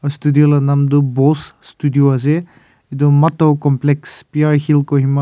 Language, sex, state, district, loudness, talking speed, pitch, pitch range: Nagamese, male, Nagaland, Kohima, -14 LUFS, 170 wpm, 145 Hz, 140-150 Hz